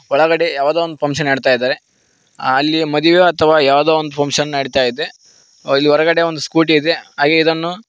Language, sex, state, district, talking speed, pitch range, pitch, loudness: Kannada, male, Karnataka, Koppal, 160 wpm, 140-165 Hz, 155 Hz, -14 LUFS